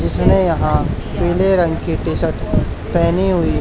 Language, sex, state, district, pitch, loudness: Hindi, male, Haryana, Charkhi Dadri, 175 Hz, -16 LUFS